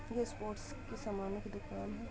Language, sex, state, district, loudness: Hindi, female, Uttar Pradesh, Muzaffarnagar, -43 LUFS